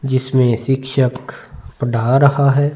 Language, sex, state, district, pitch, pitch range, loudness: Hindi, male, Punjab, Fazilka, 130 Hz, 125-140 Hz, -16 LUFS